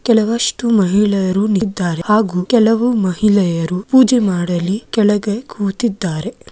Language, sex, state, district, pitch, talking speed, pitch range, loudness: Kannada, female, Karnataka, Mysore, 205 Hz, 90 wpm, 185-225 Hz, -15 LUFS